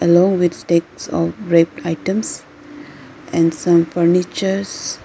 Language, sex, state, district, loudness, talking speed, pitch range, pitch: English, female, Arunachal Pradesh, Lower Dibang Valley, -17 LUFS, 120 wpm, 165-190 Hz, 170 Hz